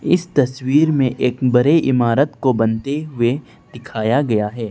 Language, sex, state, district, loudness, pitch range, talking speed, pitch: Hindi, male, Arunachal Pradesh, Lower Dibang Valley, -17 LUFS, 120-145 Hz, 155 wpm, 130 Hz